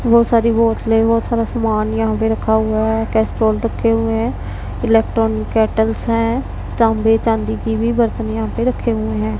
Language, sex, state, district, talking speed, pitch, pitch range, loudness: Hindi, female, Punjab, Pathankot, 180 wpm, 225 Hz, 220-230 Hz, -17 LUFS